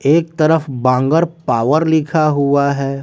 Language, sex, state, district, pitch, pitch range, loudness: Hindi, male, Bihar, West Champaran, 150 Hz, 135-160 Hz, -15 LUFS